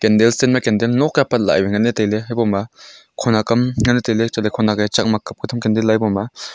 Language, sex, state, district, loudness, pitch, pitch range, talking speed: Wancho, male, Arunachal Pradesh, Longding, -17 LUFS, 110 Hz, 110-120 Hz, 265 wpm